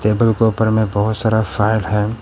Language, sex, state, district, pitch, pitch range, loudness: Hindi, male, Arunachal Pradesh, Papum Pare, 110 Hz, 105-110 Hz, -16 LUFS